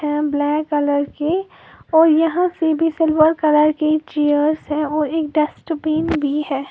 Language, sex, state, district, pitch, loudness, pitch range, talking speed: Hindi, female, Uttar Pradesh, Lalitpur, 305 Hz, -18 LUFS, 295-320 Hz, 150 wpm